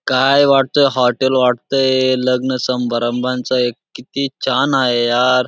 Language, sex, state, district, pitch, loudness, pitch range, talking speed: Marathi, male, Maharashtra, Dhule, 130 Hz, -15 LUFS, 125-135 Hz, 120 wpm